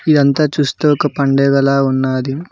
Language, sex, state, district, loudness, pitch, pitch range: Telugu, male, Telangana, Mahabubabad, -14 LUFS, 140 Hz, 135-150 Hz